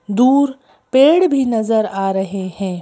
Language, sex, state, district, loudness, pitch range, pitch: Hindi, female, Madhya Pradesh, Bhopal, -15 LUFS, 195-270 Hz, 220 Hz